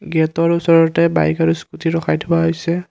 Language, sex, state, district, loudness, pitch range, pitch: Assamese, male, Assam, Kamrup Metropolitan, -16 LUFS, 160-170 Hz, 165 Hz